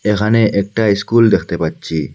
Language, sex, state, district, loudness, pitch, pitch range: Bengali, male, Assam, Hailakandi, -15 LUFS, 105 Hz, 100-115 Hz